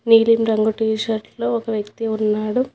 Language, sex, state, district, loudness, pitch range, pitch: Telugu, female, Telangana, Hyderabad, -19 LUFS, 215-230 Hz, 225 Hz